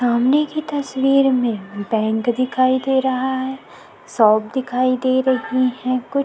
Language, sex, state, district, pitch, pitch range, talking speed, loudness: Hindi, female, Chhattisgarh, Korba, 255 Hz, 240-265 Hz, 145 wpm, -18 LUFS